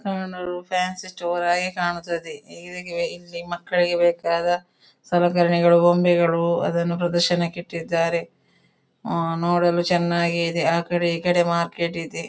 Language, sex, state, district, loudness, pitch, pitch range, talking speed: Kannada, female, Karnataka, Dakshina Kannada, -22 LUFS, 175 Hz, 170-175 Hz, 115 wpm